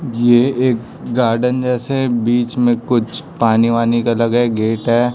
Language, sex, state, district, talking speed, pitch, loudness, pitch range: Hindi, male, Chhattisgarh, Raipur, 150 wpm, 120 Hz, -16 LUFS, 115-125 Hz